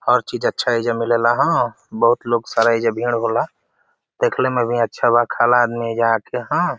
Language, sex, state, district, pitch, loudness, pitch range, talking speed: Bhojpuri, male, Uttar Pradesh, Deoria, 120 Hz, -18 LUFS, 115-120 Hz, 195 wpm